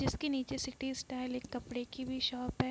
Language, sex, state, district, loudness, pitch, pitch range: Hindi, female, Bihar, East Champaran, -38 LUFS, 260 Hz, 250-265 Hz